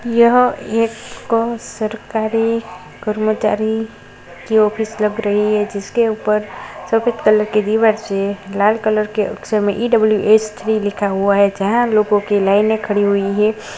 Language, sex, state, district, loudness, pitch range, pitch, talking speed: Hindi, male, Bihar, Jahanabad, -16 LUFS, 205-225 Hz, 215 Hz, 145 wpm